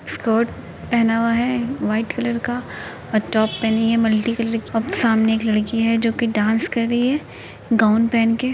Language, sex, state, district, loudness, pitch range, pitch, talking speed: Hindi, female, Uttar Pradesh, Etah, -19 LUFS, 225-235 Hz, 230 Hz, 195 wpm